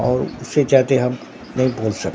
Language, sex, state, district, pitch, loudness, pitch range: Hindi, male, Bihar, Katihar, 125 Hz, -19 LUFS, 115-135 Hz